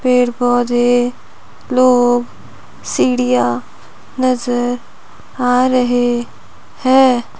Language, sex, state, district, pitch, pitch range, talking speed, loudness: Hindi, female, Himachal Pradesh, Shimla, 245 Hz, 240-250 Hz, 65 wpm, -15 LUFS